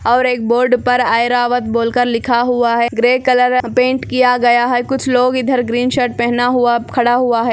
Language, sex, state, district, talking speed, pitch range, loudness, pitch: Hindi, female, Andhra Pradesh, Anantapur, 200 wpm, 240-250 Hz, -14 LUFS, 245 Hz